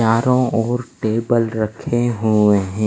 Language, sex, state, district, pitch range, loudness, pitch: Hindi, male, Punjab, Fazilka, 110-120 Hz, -18 LUFS, 115 Hz